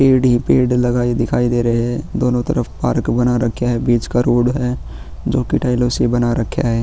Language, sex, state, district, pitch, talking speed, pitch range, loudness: Hindi, male, Bihar, Vaishali, 120 Hz, 220 wpm, 120-125 Hz, -17 LUFS